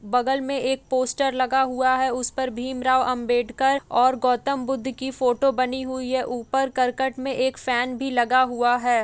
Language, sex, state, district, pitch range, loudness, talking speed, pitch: Hindi, female, Uttar Pradesh, Jalaun, 250-265 Hz, -23 LUFS, 190 wpm, 255 Hz